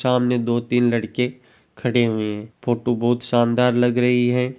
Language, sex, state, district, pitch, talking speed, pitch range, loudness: Hindi, male, Rajasthan, Churu, 120 Hz, 170 wpm, 120-125 Hz, -20 LUFS